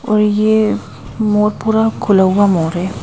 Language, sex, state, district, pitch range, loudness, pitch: Hindi, female, Madhya Pradesh, Bhopal, 175-215 Hz, -14 LUFS, 210 Hz